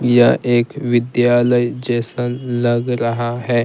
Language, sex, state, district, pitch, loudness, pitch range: Hindi, male, Jharkhand, Deoghar, 120 Hz, -17 LUFS, 120-125 Hz